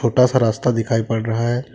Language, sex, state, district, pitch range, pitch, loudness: Hindi, male, Jharkhand, Deoghar, 115-125 Hz, 115 Hz, -18 LUFS